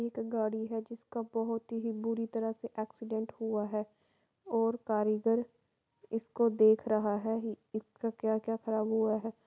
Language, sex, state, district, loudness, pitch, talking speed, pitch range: Marwari, female, Rajasthan, Churu, -34 LUFS, 225 Hz, 150 wpm, 220-230 Hz